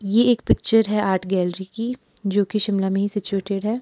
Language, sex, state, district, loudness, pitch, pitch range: Hindi, female, Himachal Pradesh, Shimla, -21 LUFS, 205 Hz, 195-225 Hz